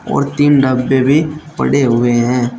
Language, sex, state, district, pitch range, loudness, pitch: Hindi, male, Uttar Pradesh, Shamli, 125-145 Hz, -13 LUFS, 130 Hz